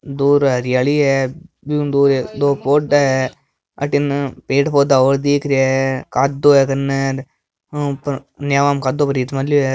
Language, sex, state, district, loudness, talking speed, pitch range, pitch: Marwari, male, Rajasthan, Nagaur, -16 LUFS, 150 wpm, 135-145 Hz, 140 Hz